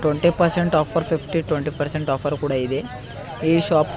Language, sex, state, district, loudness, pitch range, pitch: Kannada, male, Karnataka, Bidar, -20 LUFS, 145-165 Hz, 150 Hz